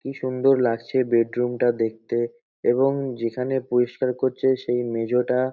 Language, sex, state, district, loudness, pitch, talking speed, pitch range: Bengali, male, West Bengal, North 24 Parganas, -23 LUFS, 125 Hz, 130 wpm, 120-130 Hz